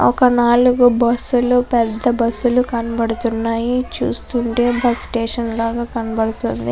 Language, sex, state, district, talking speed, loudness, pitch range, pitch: Telugu, female, Andhra Pradesh, Chittoor, 115 wpm, -17 LUFS, 230-245 Hz, 235 Hz